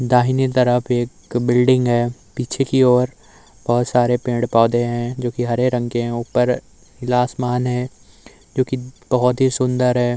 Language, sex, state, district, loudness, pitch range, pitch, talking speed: Hindi, male, Uttar Pradesh, Muzaffarnagar, -19 LUFS, 120-125 Hz, 125 Hz, 165 wpm